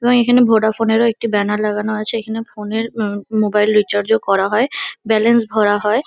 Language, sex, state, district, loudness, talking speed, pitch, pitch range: Bengali, female, West Bengal, North 24 Parganas, -16 LUFS, 235 wpm, 220 Hz, 210-230 Hz